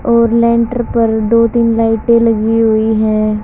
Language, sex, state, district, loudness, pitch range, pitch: Hindi, male, Haryana, Charkhi Dadri, -12 LUFS, 220-235 Hz, 230 Hz